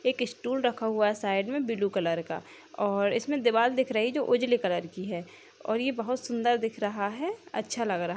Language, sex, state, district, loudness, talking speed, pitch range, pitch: Hindi, male, Bihar, Bhagalpur, -29 LUFS, 235 wpm, 200-255 Hz, 230 Hz